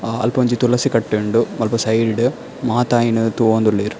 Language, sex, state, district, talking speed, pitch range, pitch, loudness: Tulu, male, Karnataka, Dakshina Kannada, 165 wpm, 110-120 Hz, 115 Hz, -17 LUFS